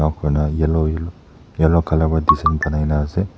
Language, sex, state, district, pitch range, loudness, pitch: Nagamese, male, Nagaland, Dimapur, 75-80 Hz, -18 LUFS, 80 Hz